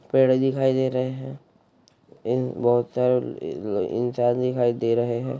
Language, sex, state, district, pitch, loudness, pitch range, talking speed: Hindi, male, Chhattisgarh, Raigarh, 125 Hz, -23 LUFS, 120-130 Hz, 180 wpm